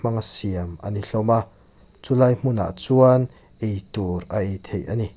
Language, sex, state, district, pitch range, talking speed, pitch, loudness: Mizo, male, Mizoram, Aizawl, 95-115 Hz, 150 wpm, 105 Hz, -19 LUFS